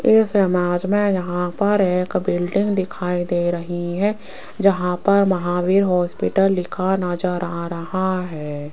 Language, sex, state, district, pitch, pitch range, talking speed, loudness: Hindi, female, Rajasthan, Jaipur, 180 Hz, 175-195 Hz, 130 wpm, -20 LUFS